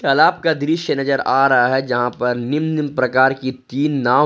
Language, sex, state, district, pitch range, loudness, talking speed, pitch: Hindi, male, Jharkhand, Ranchi, 130-150 Hz, -17 LUFS, 225 wpm, 135 Hz